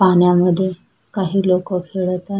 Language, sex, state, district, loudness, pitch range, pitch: Marathi, female, Maharashtra, Sindhudurg, -17 LUFS, 180-190 Hz, 185 Hz